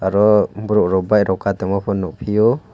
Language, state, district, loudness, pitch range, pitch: Kokborok, Tripura, West Tripura, -17 LUFS, 95-105 Hz, 100 Hz